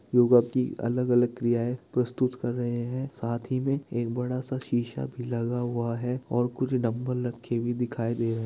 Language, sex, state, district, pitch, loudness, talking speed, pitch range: Hindi, male, Bihar, Kishanganj, 120 Hz, -28 LUFS, 190 wpm, 120-125 Hz